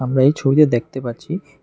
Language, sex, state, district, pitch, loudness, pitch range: Bengali, male, Tripura, West Tripura, 135 Hz, -17 LUFS, 130-150 Hz